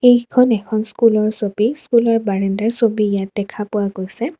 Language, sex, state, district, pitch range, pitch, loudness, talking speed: Assamese, female, Assam, Kamrup Metropolitan, 205-235 Hz, 215 Hz, -17 LUFS, 150 wpm